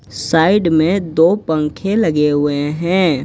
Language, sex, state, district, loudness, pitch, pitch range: Hindi, male, Jharkhand, Ranchi, -15 LUFS, 160 Hz, 150-180 Hz